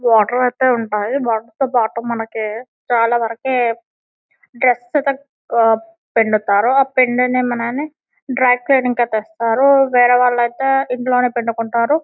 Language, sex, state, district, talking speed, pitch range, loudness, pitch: Telugu, female, Telangana, Karimnagar, 100 wpm, 230-260 Hz, -16 LUFS, 245 Hz